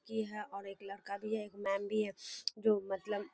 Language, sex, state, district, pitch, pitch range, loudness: Hindi, female, Bihar, Darbhanga, 205 Hz, 195-215 Hz, -38 LUFS